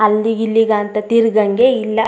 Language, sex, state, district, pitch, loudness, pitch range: Kannada, female, Karnataka, Chamarajanagar, 220 Hz, -14 LUFS, 215-225 Hz